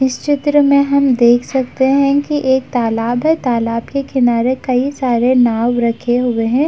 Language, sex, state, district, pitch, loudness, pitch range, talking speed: Hindi, female, Uttar Pradesh, Etah, 255 Hz, -14 LUFS, 240-280 Hz, 180 wpm